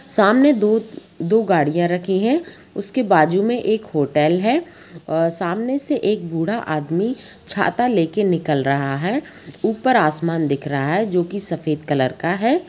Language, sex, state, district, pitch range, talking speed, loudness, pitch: Hindi, female, Jharkhand, Sahebganj, 160-225 Hz, 155 wpm, -19 LUFS, 190 Hz